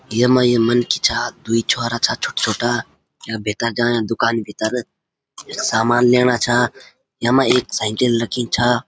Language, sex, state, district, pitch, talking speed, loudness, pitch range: Garhwali, male, Uttarakhand, Uttarkashi, 120 Hz, 150 wpm, -18 LUFS, 115-125 Hz